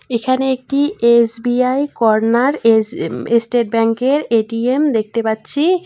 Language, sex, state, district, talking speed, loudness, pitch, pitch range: Bengali, female, West Bengal, Cooch Behar, 100 wpm, -15 LUFS, 235 Hz, 230-265 Hz